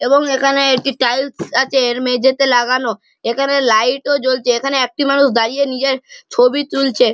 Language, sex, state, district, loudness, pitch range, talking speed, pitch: Bengali, male, West Bengal, Malda, -15 LUFS, 245-275 Hz, 160 wpm, 265 Hz